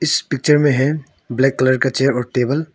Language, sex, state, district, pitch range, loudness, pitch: Hindi, female, Arunachal Pradesh, Longding, 130-150 Hz, -16 LUFS, 135 Hz